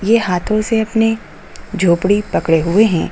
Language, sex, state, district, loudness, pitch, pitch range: Hindi, female, Uttar Pradesh, Lucknow, -15 LUFS, 205 Hz, 175-220 Hz